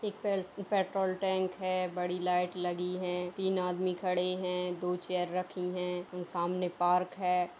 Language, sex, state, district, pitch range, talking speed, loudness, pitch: Hindi, female, Bihar, Madhepura, 180-185 Hz, 165 wpm, -33 LUFS, 180 Hz